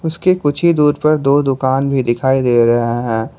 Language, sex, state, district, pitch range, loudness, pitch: Hindi, male, Jharkhand, Palamu, 120-150 Hz, -14 LUFS, 135 Hz